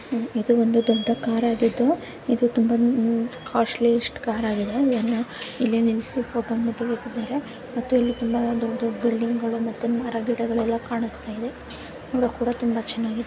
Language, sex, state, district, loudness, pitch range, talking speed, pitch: Kannada, female, Karnataka, Chamarajanagar, -24 LUFS, 230-240 Hz, 125 wpm, 235 Hz